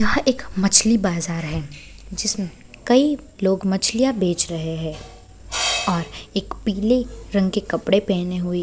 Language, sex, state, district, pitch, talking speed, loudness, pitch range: Hindi, female, Bihar, Sitamarhi, 195 Hz, 145 wpm, -21 LUFS, 175-225 Hz